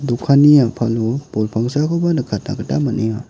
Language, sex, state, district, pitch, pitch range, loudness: Garo, male, Meghalaya, West Garo Hills, 125 Hz, 115-145 Hz, -16 LUFS